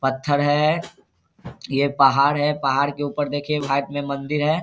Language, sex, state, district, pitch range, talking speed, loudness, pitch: Hindi, male, Bihar, Saharsa, 140-150 Hz, 170 wpm, -21 LUFS, 145 Hz